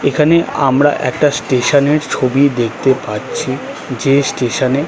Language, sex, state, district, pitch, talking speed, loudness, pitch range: Bengali, male, West Bengal, Kolkata, 135 Hz, 135 wpm, -14 LUFS, 125-145 Hz